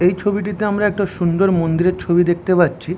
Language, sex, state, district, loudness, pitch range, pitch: Bengali, male, West Bengal, Jhargram, -17 LUFS, 175-200 Hz, 180 Hz